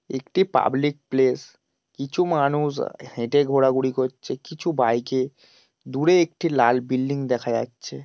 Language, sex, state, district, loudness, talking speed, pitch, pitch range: Bengali, male, West Bengal, Paschim Medinipur, -23 LUFS, 140 wpm, 130 Hz, 125-145 Hz